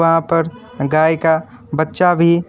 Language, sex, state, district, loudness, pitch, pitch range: Hindi, male, West Bengal, Alipurduar, -15 LUFS, 160 Hz, 155-165 Hz